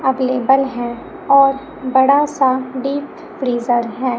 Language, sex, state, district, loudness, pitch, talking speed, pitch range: Hindi, male, Chhattisgarh, Raipur, -16 LUFS, 265 Hz, 115 wpm, 255-275 Hz